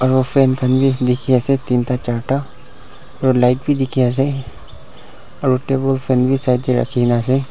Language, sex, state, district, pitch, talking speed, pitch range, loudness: Nagamese, male, Nagaland, Dimapur, 130 Hz, 150 wpm, 125-135 Hz, -17 LUFS